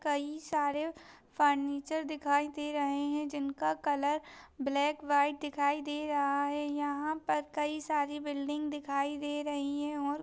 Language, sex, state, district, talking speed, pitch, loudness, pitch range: Hindi, female, Maharashtra, Pune, 150 wpm, 290 Hz, -33 LUFS, 285-295 Hz